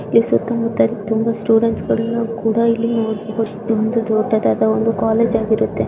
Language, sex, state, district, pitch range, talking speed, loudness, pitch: Kannada, female, Karnataka, Dakshina Kannada, 215-230 Hz, 60 wpm, -17 LUFS, 225 Hz